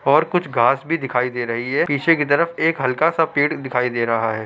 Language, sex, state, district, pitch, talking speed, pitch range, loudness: Hindi, male, Uttar Pradesh, Hamirpur, 135 Hz, 255 wpm, 125-165 Hz, -19 LUFS